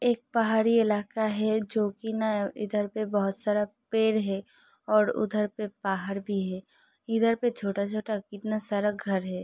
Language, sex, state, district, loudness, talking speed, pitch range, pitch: Hindi, female, Uttar Pradesh, Hamirpur, -28 LUFS, 160 wpm, 200-220 Hz, 210 Hz